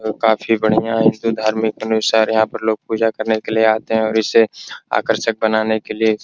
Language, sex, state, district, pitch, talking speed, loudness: Hindi, male, Bihar, Supaul, 110 Hz, 180 wpm, -17 LUFS